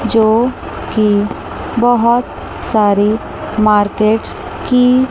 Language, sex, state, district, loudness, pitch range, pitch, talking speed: Hindi, female, Chandigarh, Chandigarh, -14 LUFS, 215-240 Hz, 220 Hz, 60 wpm